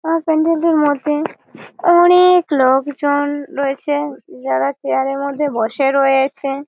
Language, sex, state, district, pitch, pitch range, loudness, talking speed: Bengali, female, West Bengal, Malda, 285 Hz, 270-310 Hz, -15 LUFS, 125 wpm